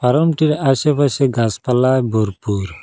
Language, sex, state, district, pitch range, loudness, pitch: Bengali, male, Assam, Hailakandi, 110-145 Hz, -16 LUFS, 130 Hz